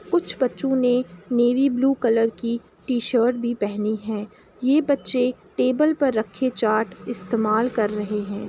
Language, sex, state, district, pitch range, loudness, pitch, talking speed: Hindi, female, Uttar Pradesh, Jalaun, 215-255 Hz, -22 LUFS, 235 Hz, 150 wpm